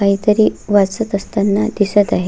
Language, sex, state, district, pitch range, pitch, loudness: Marathi, female, Maharashtra, Solapur, 200-210 Hz, 205 Hz, -15 LUFS